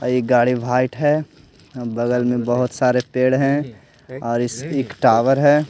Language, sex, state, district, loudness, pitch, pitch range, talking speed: Hindi, male, Haryana, Rohtak, -18 LUFS, 125 Hz, 120-135 Hz, 170 wpm